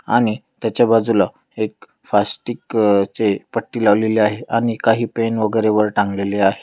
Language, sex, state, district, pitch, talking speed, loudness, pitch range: Marathi, male, Maharashtra, Dhule, 110 Hz, 165 wpm, -18 LUFS, 105-115 Hz